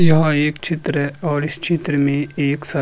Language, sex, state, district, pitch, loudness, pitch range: Hindi, male, Uttarakhand, Tehri Garhwal, 150 Hz, -18 LUFS, 145-165 Hz